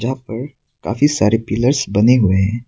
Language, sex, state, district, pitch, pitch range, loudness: Hindi, male, Arunachal Pradesh, Papum Pare, 115 Hz, 105-130 Hz, -16 LUFS